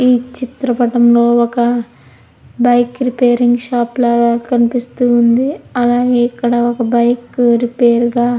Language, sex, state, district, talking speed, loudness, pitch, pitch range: Telugu, female, Andhra Pradesh, Krishna, 105 wpm, -13 LUFS, 240 Hz, 240-245 Hz